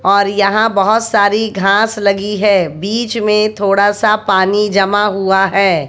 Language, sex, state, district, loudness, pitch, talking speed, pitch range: Hindi, female, Bihar, West Champaran, -13 LUFS, 200 Hz, 155 wpm, 195-210 Hz